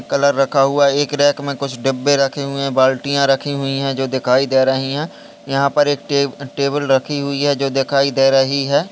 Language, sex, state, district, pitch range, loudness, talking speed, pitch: Hindi, male, Uttar Pradesh, Deoria, 135-140 Hz, -16 LUFS, 230 wpm, 140 Hz